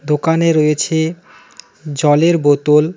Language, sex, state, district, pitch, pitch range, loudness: Bengali, male, West Bengal, Cooch Behar, 155 Hz, 150-165 Hz, -14 LUFS